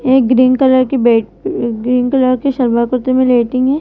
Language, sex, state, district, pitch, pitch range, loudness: Hindi, female, Madhya Pradesh, Bhopal, 255 Hz, 245-260 Hz, -13 LUFS